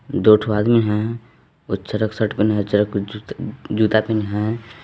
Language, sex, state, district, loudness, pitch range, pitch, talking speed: Hindi, male, Jharkhand, Palamu, -20 LUFS, 105-110 Hz, 110 Hz, 185 wpm